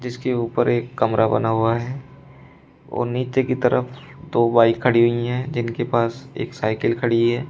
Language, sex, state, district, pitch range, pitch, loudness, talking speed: Hindi, male, Uttar Pradesh, Shamli, 115-130 Hz, 120 Hz, -20 LUFS, 175 wpm